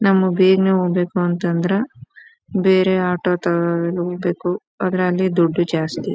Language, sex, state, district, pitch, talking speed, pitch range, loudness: Kannada, female, Karnataka, Chamarajanagar, 180 Hz, 115 wpm, 175-190 Hz, -18 LUFS